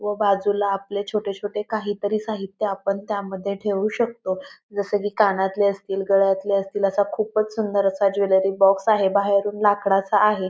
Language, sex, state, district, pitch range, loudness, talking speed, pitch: Marathi, female, Maharashtra, Pune, 195-210 Hz, -22 LUFS, 160 wpm, 200 Hz